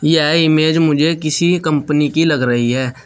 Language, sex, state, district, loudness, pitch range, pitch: Hindi, male, Uttar Pradesh, Shamli, -14 LUFS, 145-160 Hz, 155 Hz